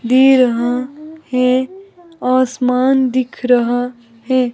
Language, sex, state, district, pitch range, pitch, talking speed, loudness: Hindi, female, Himachal Pradesh, Shimla, 245-265 Hz, 255 Hz, 90 wpm, -15 LUFS